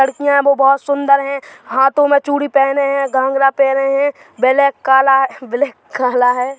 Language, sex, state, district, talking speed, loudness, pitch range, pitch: Hindi, male, Chhattisgarh, Bilaspur, 175 wpm, -14 LUFS, 265-280 Hz, 275 Hz